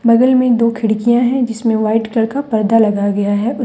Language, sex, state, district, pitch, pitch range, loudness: Hindi, female, Jharkhand, Deoghar, 230 Hz, 220-245 Hz, -14 LUFS